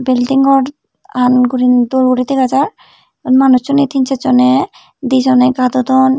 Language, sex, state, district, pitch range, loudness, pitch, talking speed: Chakma, female, Tripura, Unakoti, 255-270 Hz, -12 LUFS, 260 Hz, 135 wpm